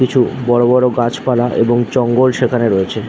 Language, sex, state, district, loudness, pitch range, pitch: Bengali, male, West Bengal, Dakshin Dinajpur, -14 LUFS, 120-125 Hz, 120 Hz